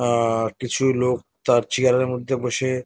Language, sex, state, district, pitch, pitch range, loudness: Bengali, male, West Bengal, North 24 Parganas, 125 Hz, 120-130 Hz, -21 LUFS